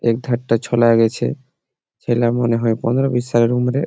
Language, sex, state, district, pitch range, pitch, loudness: Bengali, male, West Bengal, Malda, 115-125 Hz, 120 Hz, -17 LUFS